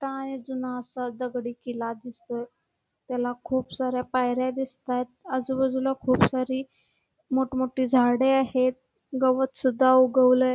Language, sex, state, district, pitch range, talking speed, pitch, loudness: Marathi, female, Karnataka, Belgaum, 250-260 Hz, 115 wpm, 255 Hz, -26 LUFS